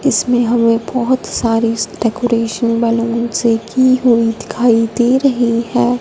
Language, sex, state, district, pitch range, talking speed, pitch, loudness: Hindi, female, Punjab, Fazilka, 230-245 Hz, 130 wpm, 235 Hz, -14 LUFS